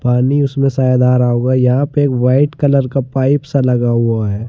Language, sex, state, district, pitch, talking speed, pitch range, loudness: Hindi, male, Chandigarh, Chandigarh, 130 Hz, 225 wpm, 125-140 Hz, -14 LUFS